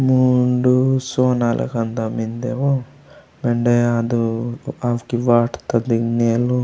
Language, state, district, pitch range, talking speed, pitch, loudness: Gondi, Chhattisgarh, Sukma, 115-130 Hz, 100 wpm, 120 Hz, -19 LUFS